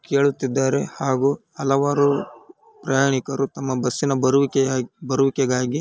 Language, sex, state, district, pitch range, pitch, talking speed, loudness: Kannada, male, Karnataka, Raichur, 130-140 Hz, 135 Hz, 70 wpm, -21 LUFS